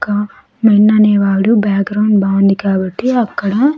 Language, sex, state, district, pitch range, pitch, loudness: Telugu, female, Andhra Pradesh, Sri Satya Sai, 195-215 Hz, 205 Hz, -12 LUFS